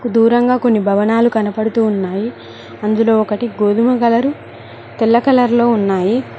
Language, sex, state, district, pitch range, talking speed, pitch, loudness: Telugu, female, Telangana, Mahabubabad, 215-240 Hz, 115 wpm, 225 Hz, -14 LUFS